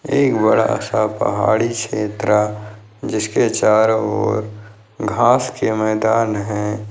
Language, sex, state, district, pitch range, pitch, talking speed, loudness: Hindi, male, Bihar, Jahanabad, 105-110 Hz, 110 Hz, 115 wpm, -17 LUFS